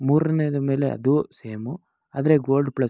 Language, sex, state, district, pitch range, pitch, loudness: Kannada, male, Karnataka, Mysore, 135-150 Hz, 140 Hz, -22 LUFS